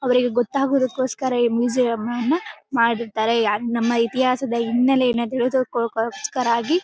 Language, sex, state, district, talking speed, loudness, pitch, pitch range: Kannada, female, Karnataka, Bellary, 95 wpm, -21 LUFS, 245 Hz, 235-260 Hz